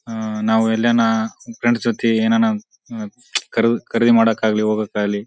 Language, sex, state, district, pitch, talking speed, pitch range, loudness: Kannada, male, Karnataka, Bijapur, 115 Hz, 115 wpm, 110-120 Hz, -18 LUFS